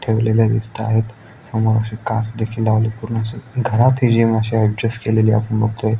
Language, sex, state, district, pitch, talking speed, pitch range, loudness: Marathi, male, Maharashtra, Aurangabad, 110 Hz, 170 wpm, 110-115 Hz, -18 LUFS